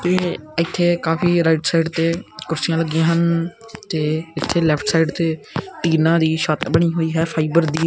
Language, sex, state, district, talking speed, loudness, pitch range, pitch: Punjabi, male, Punjab, Kapurthala, 170 wpm, -19 LUFS, 160-170 Hz, 165 Hz